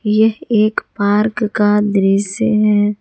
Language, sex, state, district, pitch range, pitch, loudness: Hindi, female, Jharkhand, Ranchi, 205-215 Hz, 210 Hz, -15 LUFS